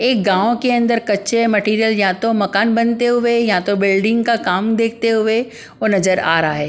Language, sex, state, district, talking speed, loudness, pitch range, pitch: Hindi, female, Punjab, Pathankot, 215 wpm, -16 LUFS, 200-230 Hz, 225 Hz